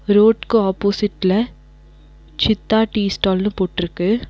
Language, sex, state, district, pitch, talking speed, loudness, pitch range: Tamil, female, Tamil Nadu, Nilgiris, 200 Hz, 85 wpm, -18 LUFS, 180-215 Hz